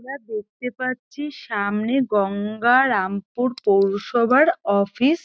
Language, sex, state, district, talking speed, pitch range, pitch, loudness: Bengali, female, West Bengal, North 24 Parganas, 90 wpm, 205-260 Hz, 240 Hz, -21 LUFS